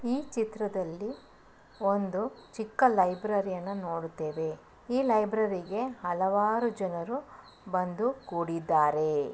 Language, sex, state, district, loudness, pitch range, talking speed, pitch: Kannada, female, Karnataka, Bellary, -30 LUFS, 175-225 Hz, 85 wpm, 200 Hz